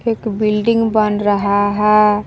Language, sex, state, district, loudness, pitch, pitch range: Hindi, female, Jharkhand, Palamu, -15 LUFS, 210 Hz, 205-215 Hz